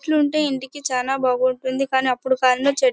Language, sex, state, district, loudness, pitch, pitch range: Telugu, female, Karnataka, Bellary, -20 LUFS, 265 Hz, 255-285 Hz